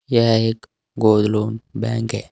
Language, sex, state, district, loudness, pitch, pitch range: Hindi, male, Uttar Pradesh, Saharanpur, -19 LUFS, 115 Hz, 105-115 Hz